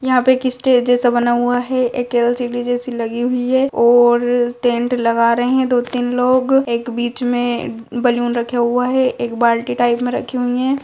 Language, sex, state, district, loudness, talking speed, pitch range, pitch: Hindi, female, Uttar Pradesh, Ghazipur, -16 LUFS, 200 wpm, 240-250 Hz, 245 Hz